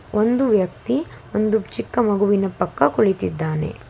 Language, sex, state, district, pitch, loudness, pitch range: Kannada, female, Karnataka, Bangalore, 210 Hz, -20 LUFS, 195-225 Hz